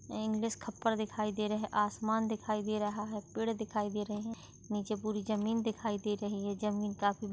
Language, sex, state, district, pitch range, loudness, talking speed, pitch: Hindi, female, Maharashtra, Dhule, 210-220 Hz, -35 LUFS, 205 wpm, 215 Hz